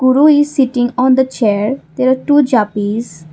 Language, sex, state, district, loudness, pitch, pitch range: English, female, Assam, Kamrup Metropolitan, -13 LUFS, 255 Hz, 215-270 Hz